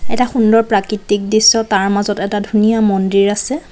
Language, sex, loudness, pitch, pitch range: Assamese, female, -14 LUFS, 210 Hz, 200-225 Hz